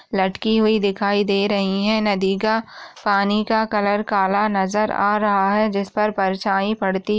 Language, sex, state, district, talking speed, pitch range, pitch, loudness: Hindi, female, Maharashtra, Solapur, 165 wpm, 195-215 Hz, 205 Hz, -19 LUFS